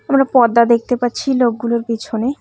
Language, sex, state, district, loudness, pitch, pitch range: Bengali, female, West Bengal, Cooch Behar, -15 LUFS, 240 Hz, 235-255 Hz